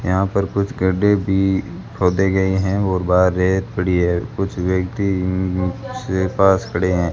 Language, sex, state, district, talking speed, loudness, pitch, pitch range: Hindi, male, Rajasthan, Bikaner, 160 wpm, -19 LUFS, 95 Hz, 90-100 Hz